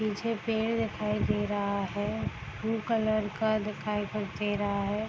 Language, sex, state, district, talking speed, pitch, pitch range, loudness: Hindi, female, Bihar, East Champaran, 165 wpm, 210 Hz, 205-220 Hz, -31 LUFS